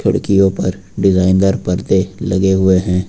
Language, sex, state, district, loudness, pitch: Hindi, male, Uttar Pradesh, Lucknow, -14 LUFS, 95 Hz